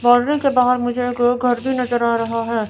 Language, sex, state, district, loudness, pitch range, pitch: Hindi, female, Chandigarh, Chandigarh, -18 LUFS, 235-250 Hz, 245 Hz